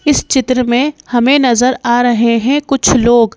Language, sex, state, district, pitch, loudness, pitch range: Hindi, female, Madhya Pradesh, Bhopal, 250 Hz, -12 LUFS, 240-275 Hz